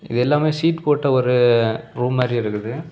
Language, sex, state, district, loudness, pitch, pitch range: Tamil, male, Tamil Nadu, Kanyakumari, -19 LUFS, 125 Hz, 120-150 Hz